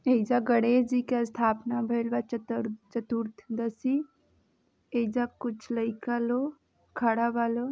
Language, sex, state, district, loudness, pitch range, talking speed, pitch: Bhojpuri, female, Uttar Pradesh, Gorakhpur, -29 LUFS, 230-245 Hz, 125 wpm, 235 Hz